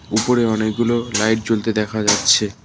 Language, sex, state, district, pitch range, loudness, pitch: Bengali, male, West Bengal, Cooch Behar, 105-115 Hz, -17 LUFS, 110 Hz